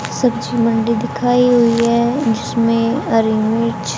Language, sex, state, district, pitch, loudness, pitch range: Hindi, female, Haryana, Jhajjar, 230 Hz, -15 LUFS, 225-235 Hz